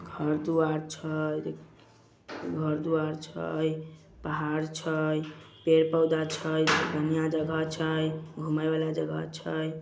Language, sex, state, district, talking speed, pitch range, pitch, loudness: Magahi, male, Bihar, Samastipur, 120 wpm, 155-160 Hz, 155 Hz, -29 LUFS